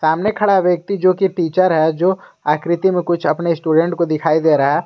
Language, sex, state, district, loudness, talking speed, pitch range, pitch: Hindi, male, Jharkhand, Garhwa, -16 LUFS, 210 wpm, 155-185 Hz, 170 Hz